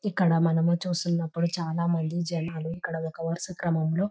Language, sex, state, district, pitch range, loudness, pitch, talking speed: Telugu, female, Telangana, Nalgonda, 165-175 Hz, -27 LUFS, 170 Hz, 145 wpm